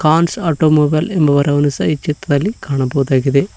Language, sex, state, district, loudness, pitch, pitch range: Kannada, male, Karnataka, Koppal, -15 LUFS, 150 Hz, 140-165 Hz